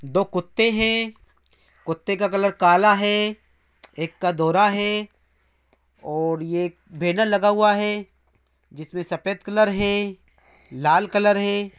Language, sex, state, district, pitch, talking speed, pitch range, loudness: Hindi, male, Bihar, Araria, 200 Hz, 125 wpm, 165-205 Hz, -21 LUFS